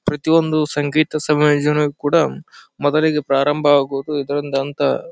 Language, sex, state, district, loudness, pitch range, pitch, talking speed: Kannada, male, Karnataka, Bijapur, -17 LUFS, 145-155 Hz, 150 Hz, 130 wpm